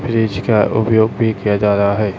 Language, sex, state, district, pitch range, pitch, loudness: Hindi, male, Chhattisgarh, Raipur, 100-110 Hz, 110 Hz, -15 LUFS